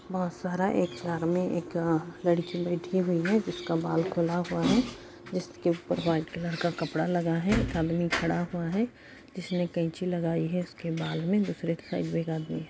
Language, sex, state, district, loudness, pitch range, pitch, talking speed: Hindi, female, Bihar, Kishanganj, -29 LUFS, 165-180 Hz, 170 Hz, 195 wpm